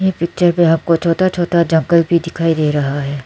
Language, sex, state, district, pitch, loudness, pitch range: Hindi, female, Arunachal Pradesh, Lower Dibang Valley, 165 Hz, -15 LUFS, 160-170 Hz